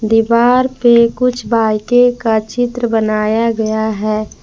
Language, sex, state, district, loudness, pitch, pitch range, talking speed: Hindi, female, Jharkhand, Palamu, -13 LUFS, 230 Hz, 220-245 Hz, 120 wpm